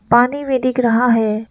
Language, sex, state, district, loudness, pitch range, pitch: Hindi, female, Arunachal Pradesh, Lower Dibang Valley, -16 LUFS, 225-255 Hz, 240 Hz